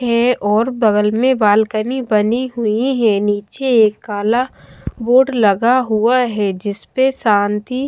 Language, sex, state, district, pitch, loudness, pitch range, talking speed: Hindi, female, Odisha, Khordha, 225 Hz, -15 LUFS, 210-250 Hz, 130 wpm